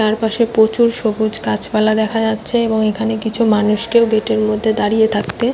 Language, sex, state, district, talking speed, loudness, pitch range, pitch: Bengali, female, West Bengal, Paschim Medinipur, 185 wpm, -15 LUFS, 215-225 Hz, 220 Hz